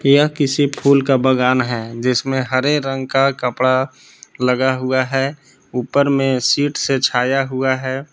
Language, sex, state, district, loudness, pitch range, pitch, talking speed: Hindi, male, Jharkhand, Palamu, -17 LUFS, 130-135 Hz, 130 Hz, 155 wpm